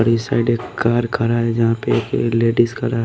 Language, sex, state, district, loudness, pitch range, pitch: Hindi, male, Haryana, Rohtak, -18 LUFS, 115-120 Hz, 115 Hz